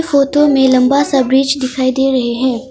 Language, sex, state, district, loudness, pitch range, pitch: Hindi, female, Arunachal Pradesh, Longding, -12 LUFS, 255-275 Hz, 265 Hz